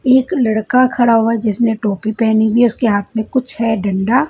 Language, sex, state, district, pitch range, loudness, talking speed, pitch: Hindi, female, Punjab, Kapurthala, 220-250 Hz, -15 LUFS, 225 wpm, 230 Hz